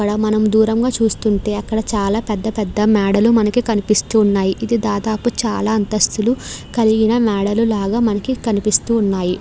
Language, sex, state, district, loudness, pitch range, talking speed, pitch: Telugu, female, Andhra Pradesh, Krishna, -16 LUFS, 205-225 Hz, 140 wpm, 215 Hz